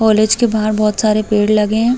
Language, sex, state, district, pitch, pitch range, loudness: Hindi, female, Uttar Pradesh, Hamirpur, 215 Hz, 215-220 Hz, -14 LUFS